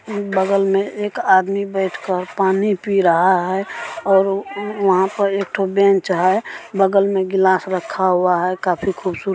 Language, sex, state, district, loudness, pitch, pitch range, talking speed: Maithili, female, Bihar, Supaul, -18 LUFS, 195 Hz, 185-200 Hz, 165 wpm